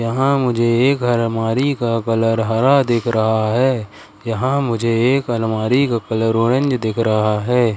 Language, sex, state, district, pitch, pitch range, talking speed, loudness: Hindi, male, Madhya Pradesh, Katni, 115 Hz, 115-125 Hz, 155 wpm, -17 LUFS